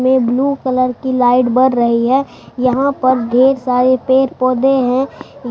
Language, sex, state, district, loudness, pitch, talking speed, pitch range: Hindi, male, Bihar, Katihar, -14 LUFS, 255 Hz, 165 wpm, 250-265 Hz